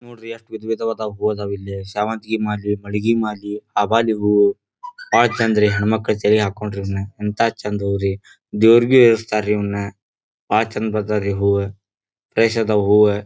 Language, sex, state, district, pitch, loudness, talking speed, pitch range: Kannada, male, Karnataka, Dharwad, 105 Hz, -18 LUFS, 155 wpm, 100-115 Hz